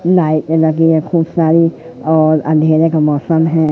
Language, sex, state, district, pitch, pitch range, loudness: Hindi, male, Madhya Pradesh, Katni, 160 Hz, 155-165 Hz, -12 LUFS